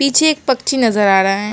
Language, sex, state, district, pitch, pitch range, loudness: Hindi, female, West Bengal, Alipurduar, 245 Hz, 205-280 Hz, -14 LUFS